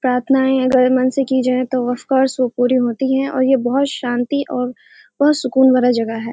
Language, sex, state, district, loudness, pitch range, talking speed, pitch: Hindi, male, Bihar, Kishanganj, -16 LUFS, 250-265 Hz, 220 wpm, 255 Hz